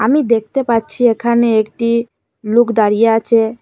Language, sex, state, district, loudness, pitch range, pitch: Bengali, female, Assam, Hailakandi, -14 LUFS, 225-235 Hz, 230 Hz